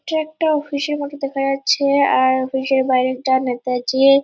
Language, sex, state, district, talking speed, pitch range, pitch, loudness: Bengali, female, West Bengal, Purulia, 140 wpm, 260-285 Hz, 275 Hz, -18 LUFS